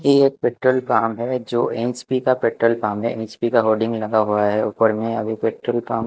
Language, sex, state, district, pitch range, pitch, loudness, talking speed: Hindi, male, Chandigarh, Chandigarh, 110-120 Hz, 115 Hz, -20 LUFS, 225 wpm